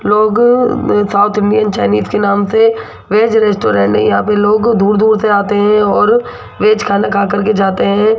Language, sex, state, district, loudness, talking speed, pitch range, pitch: Hindi, female, Rajasthan, Jaipur, -11 LUFS, 160 wpm, 200-215 Hz, 210 Hz